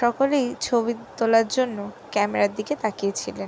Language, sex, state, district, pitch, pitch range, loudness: Bengali, female, West Bengal, Jhargram, 225 Hz, 205-245 Hz, -23 LUFS